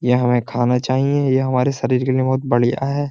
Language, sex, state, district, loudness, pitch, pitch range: Hindi, male, Uttar Pradesh, Jyotiba Phule Nagar, -18 LUFS, 130 Hz, 125-135 Hz